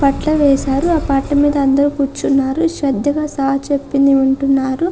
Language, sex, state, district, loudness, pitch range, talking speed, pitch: Telugu, female, Andhra Pradesh, Chittoor, -15 LUFS, 275-290 Hz, 135 wpm, 275 Hz